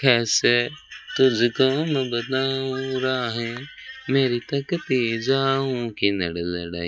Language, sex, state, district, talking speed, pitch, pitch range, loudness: Hindi, male, Rajasthan, Bikaner, 85 wpm, 130 Hz, 115-135 Hz, -22 LUFS